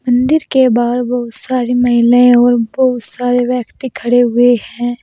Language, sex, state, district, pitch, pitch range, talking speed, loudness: Hindi, female, Uttar Pradesh, Saharanpur, 245 Hz, 240-250 Hz, 155 wpm, -12 LUFS